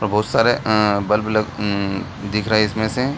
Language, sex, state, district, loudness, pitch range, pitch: Hindi, male, Bihar, Gaya, -19 LUFS, 105-110 Hz, 105 Hz